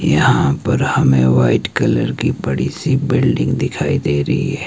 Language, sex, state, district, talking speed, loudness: Hindi, male, Himachal Pradesh, Shimla, 165 wpm, -16 LUFS